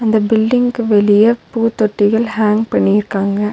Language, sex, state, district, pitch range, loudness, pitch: Tamil, female, Tamil Nadu, Nilgiris, 205-230 Hz, -14 LUFS, 220 Hz